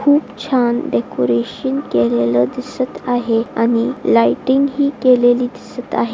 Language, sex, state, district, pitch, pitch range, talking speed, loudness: Marathi, female, Maharashtra, Chandrapur, 245 Hz, 220-260 Hz, 115 wpm, -16 LUFS